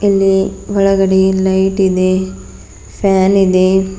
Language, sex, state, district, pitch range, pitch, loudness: Kannada, female, Karnataka, Bidar, 185-195 Hz, 190 Hz, -12 LUFS